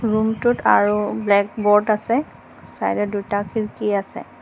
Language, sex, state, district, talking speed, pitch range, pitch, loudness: Assamese, female, Assam, Hailakandi, 120 wpm, 200-220 Hz, 210 Hz, -20 LUFS